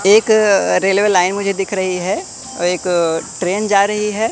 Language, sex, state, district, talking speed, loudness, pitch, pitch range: Hindi, male, Madhya Pradesh, Katni, 165 wpm, -15 LUFS, 195 Hz, 180-210 Hz